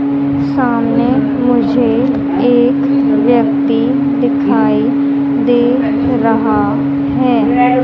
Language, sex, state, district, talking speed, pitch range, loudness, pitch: Hindi, female, Haryana, Rohtak, 60 wpm, 245-275 Hz, -12 LUFS, 260 Hz